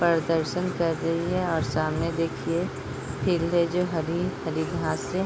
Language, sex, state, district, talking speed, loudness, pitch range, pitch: Hindi, female, Bihar, Bhagalpur, 180 wpm, -27 LUFS, 165-180 Hz, 170 Hz